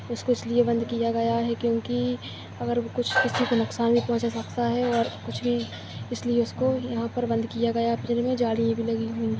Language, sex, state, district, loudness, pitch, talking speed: Hindi, female, Maharashtra, Chandrapur, -26 LUFS, 230 Hz, 200 wpm